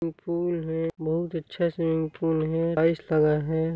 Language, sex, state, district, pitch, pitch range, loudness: Hindi, male, Chhattisgarh, Sarguja, 165 Hz, 160-165 Hz, -26 LUFS